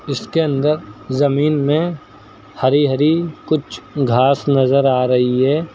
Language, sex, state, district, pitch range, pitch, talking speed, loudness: Hindi, male, Uttar Pradesh, Lucknow, 130-150 Hz, 140 Hz, 125 wpm, -16 LUFS